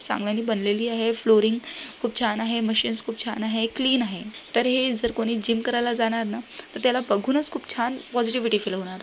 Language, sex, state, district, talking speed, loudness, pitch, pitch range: Marathi, female, Maharashtra, Solapur, 185 wpm, -23 LUFS, 230 Hz, 220-245 Hz